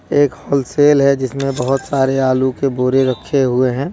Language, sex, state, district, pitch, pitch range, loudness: Hindi, male, Jharkhand, Deoghar, 135 Hz, 130-140 Hz, -15 LUFS